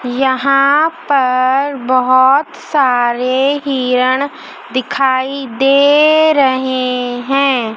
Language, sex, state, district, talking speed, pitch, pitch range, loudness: Hindi, male, Madhya Pradesh, Dhar, 70 wpm, 265 Hz, 255-280 Hz, -13 LUFS